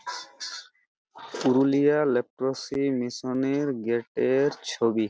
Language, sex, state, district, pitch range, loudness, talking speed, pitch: Bengali, male, West Bengal, Purulia, 125-145 Hz, -26 LUFS, 95 wpm, 135 Hz